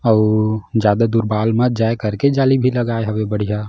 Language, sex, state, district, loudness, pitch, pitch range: Chhattisgarhi, male, Chhattisgarh, Jashpur, -17 LUFS, 110 Hz, 105-120 Hz